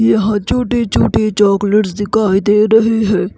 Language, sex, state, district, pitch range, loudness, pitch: Hindi, female, Haryana, Rohtak, 200-220 Hz, -13 LUFS, 210 Hz